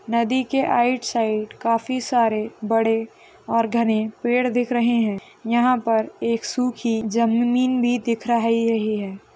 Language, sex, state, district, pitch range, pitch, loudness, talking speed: Hindi, female, Chhattisgarh, Korba, 225-245 Hz, 230 Hz, -21 LUFS, 140 wpm